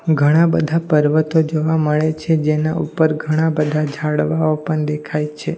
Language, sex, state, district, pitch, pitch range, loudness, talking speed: Gujarati, male, Gujarat, Valsad, 155 Hz, 150-160 Hz, -17 LUFS, 150 wpm